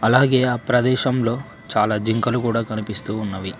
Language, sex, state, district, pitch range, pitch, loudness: Telugu, male, Telangana, Mahabubabad, 110-125 Hz, 115 Hz, -20 LUFS